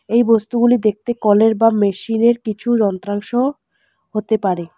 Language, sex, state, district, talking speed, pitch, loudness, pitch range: Bengali, female, West Bengal, Alipurduar, 125 wpm, 220 Hz, -17 LUFS, 205-235 Hz